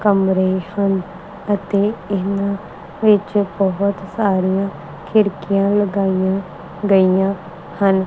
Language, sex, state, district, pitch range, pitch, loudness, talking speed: Punjabi, female, Punjab, Kapurthala, 190-200 Hz, 195 Hz, -18 LUFS, 80 wpm